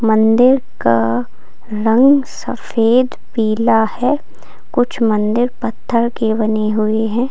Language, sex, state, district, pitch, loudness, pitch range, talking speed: Hindi, female, Uttar Pradesh, Lalitpur, 225 Hz, -15 LUFS, 220-245 Hz, 105 wpm